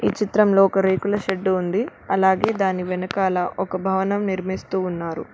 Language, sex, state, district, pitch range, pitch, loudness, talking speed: Telugu, female, Telangana, Mahabubabad, 185-200 Hz, 190 Hz, -21 LUFS, 135 wpm